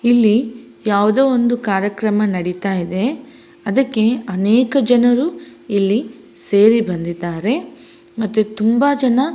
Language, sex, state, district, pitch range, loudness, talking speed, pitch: Kannada, female, Karnataka, Raichur, 205-250 Hz, -17 LUFS, 90 wpm, 225 Hz